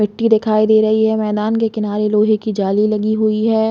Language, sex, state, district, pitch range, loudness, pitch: Hindi, female, Chhattisgarh, Bilaspur, 210-220 Hz, -15 LUFS, 215 Hz